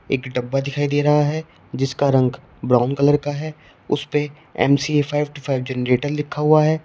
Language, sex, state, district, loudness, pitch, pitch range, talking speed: Hindi, male, Uttar Pradesh, Shamli, -20 LUFS, 145 Hz, 135-150 Hz, 200 wpm